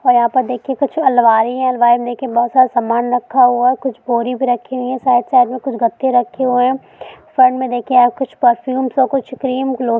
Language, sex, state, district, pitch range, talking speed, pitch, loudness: Hindi, female, Andhra Pradesh, Guntur, 245-260 Hz, 230 wpm, 255 Hz, -15 LUFS